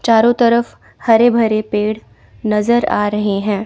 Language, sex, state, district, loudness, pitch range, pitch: Hindi, female, Chandigarh, Chandigarh, -15 LUFS, 210-235 Hz, 220 Hz